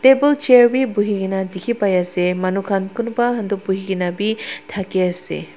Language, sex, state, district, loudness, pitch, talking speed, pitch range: Nagamese, female, Nagaland, Dimapur, -18 LUFS, 195 Hz, 185 wpm, 190-240 Hz